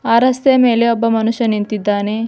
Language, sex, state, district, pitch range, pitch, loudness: Kannada, female, Karnataka, Bidar, 215-235 Hz, 230 Hz, -14 LUFS